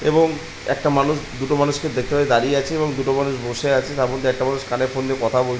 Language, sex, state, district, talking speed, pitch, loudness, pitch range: Bengali, male, West Bengal, Dakshin Dinajpur, 265 wpm, 135 Hz, -20 LUFS, 130-145 Hz